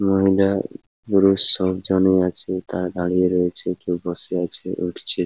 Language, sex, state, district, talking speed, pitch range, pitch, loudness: Bengali, male, West Bengal, Paschim Medinipur, 160 wpm, 90-95 Hz, 95 Hz, -19 LUFS